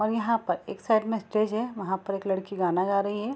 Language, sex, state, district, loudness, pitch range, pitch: Hindi, female, Bihar, Darbhanga, -28 LUFS, 190-220 Hz, 205 Hz